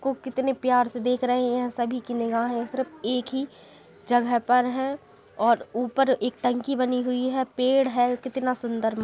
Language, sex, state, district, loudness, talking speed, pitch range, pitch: Hindi, female, Bihar, Gaya, -25 LUFS, 195 wpm, 245-260 Hz, 250 Hz